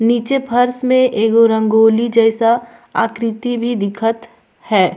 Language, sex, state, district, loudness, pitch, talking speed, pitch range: Surgujia, female, Chhattisgarh, Sarguja, -15 LUFS, 230 Hz, 120 wpm, 225-240 Hz